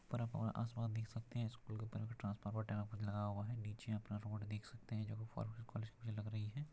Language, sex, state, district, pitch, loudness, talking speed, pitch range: Hindi, male, Bihar, Purnia, 110 Hz, -46 LUFS, 240 wpm, 105-115 Hz